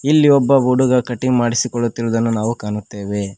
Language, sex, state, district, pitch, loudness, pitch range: Kannada, male, Karnataka, Koppal, 120 Hz, -17 LUFS, 110-130 Hz